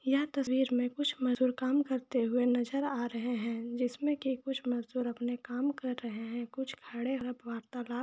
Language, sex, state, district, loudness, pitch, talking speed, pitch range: Hindi, female, Jharkhand, Jamtara, -34 LUFS, 250 Hz, 185 wpm, 240-265 Hz